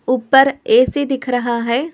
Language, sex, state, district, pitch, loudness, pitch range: Hindi, female, Telangana, Hyderabad, 270 Hz, -15 LUFS, 245-285 Hz